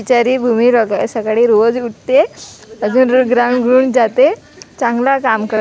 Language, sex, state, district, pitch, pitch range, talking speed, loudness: Marathi, female, Maharashtra, Gondia, 245 Hz, 225-255 Hz, 120 wpm, -13 LUFS